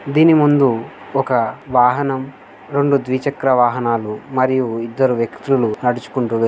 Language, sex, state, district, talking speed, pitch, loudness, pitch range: Telugu, male, Telangana, Karimnagar, 120 wpm, 130 Hz, -17 LUFS, 120-140 Hz